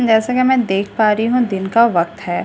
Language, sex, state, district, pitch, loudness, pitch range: Hindi, female, Delhi, New Delhi, 220 Hz, -15 LUFS, 195-240 Hz